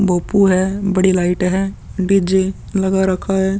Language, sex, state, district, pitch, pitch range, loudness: Hindi, male, Chhattisgarh, Sukma, 190 Hz, 185-195 Hz, -16 LUFS